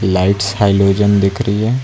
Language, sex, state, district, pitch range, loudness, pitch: Hindi, male, Uttar Pradesh, Lucknow, 100-105 Hz, -14 LUFS, 100 Hz